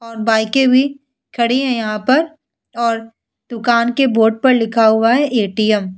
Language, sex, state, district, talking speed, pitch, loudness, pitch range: Hindi, female, Bihar, Vaishali, 170 wpm, 235 Hz, -15 LUFS, 225-260 Hz